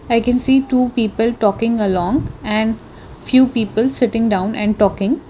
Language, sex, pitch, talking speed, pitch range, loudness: English, female, 230 Hz, 160 wpm, 215-250 Hz, -16 LUFS